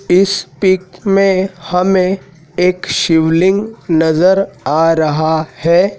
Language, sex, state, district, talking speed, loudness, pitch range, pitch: Hindi, male, Madhya Pradesh, Dhar, 100 wpm, -13 LUFS, 160-190 Hz, 180 Hz